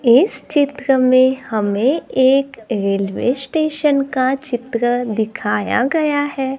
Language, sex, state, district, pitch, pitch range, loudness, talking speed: Hindi, female, Maharashtra, Gondia, 260 Hz, 240-275 Hz, -17 LUFS, 110 wpm